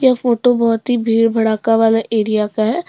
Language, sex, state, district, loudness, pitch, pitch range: Hindi, female, Jharkhand, Deoghar, -15 LUFS, 230 Hz, 225-240 Hz